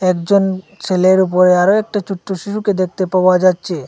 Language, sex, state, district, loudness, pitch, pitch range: Bengali, male, Assam, Hailakandi, -14 LUFS, 185 Hz, 185-200 Hz